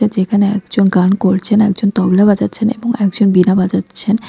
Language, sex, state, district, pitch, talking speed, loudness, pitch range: Bengali, female, West Bengal, Cooch Behar, 205 Hz, 170 wpm, -13 LUFS, 190-215 Hz